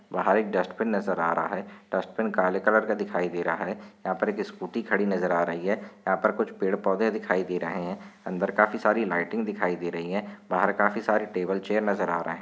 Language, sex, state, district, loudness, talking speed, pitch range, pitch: Hindi, male, Maharashtra, Chandrapur, -27 LUFS, 235 wpm, 90-105 Hz, 95 Hz